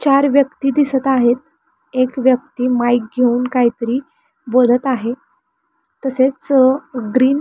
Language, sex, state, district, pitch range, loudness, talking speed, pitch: Marathi, female, Maharashtra, Pune, 250-285 Hz, -16 LUFS, 120 wpm, 265 Hz